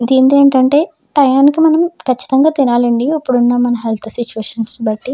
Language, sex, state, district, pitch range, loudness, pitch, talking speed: Telugu, female, Andhra Pradesh, Chittoor, 240-280 Hz, -13 LUFS, 260 Hz, 140 wpm